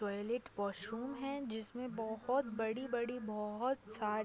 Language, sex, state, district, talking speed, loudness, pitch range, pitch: Hindi, female, Uttar Pradesh, Deoria, 155 wpm, -40 LUFS, 215-250 Hz, 225 Hz